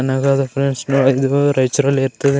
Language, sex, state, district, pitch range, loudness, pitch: Kannada, male, Karnataka, Raichur, 135-140 Hz, -16 LUFS, 135 Hz